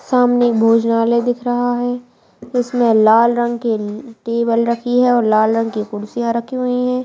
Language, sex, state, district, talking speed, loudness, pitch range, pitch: Hindi, female, Bihar, Purnia, 205 wpm, -16 LUFS, 230-245 Hz, 235 Hz